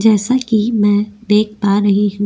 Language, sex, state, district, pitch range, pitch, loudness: Hindi, female, Goa, North and South Goa, 205-220 Hz, 210 Hz, -14 LUFS